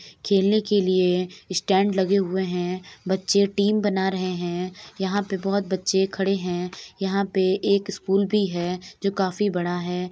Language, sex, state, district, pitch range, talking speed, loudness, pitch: Hindi, female, Uttar Pradesh, Etah, 180-200 Hz, 165 wpm, -23 LUFS, 190 Hz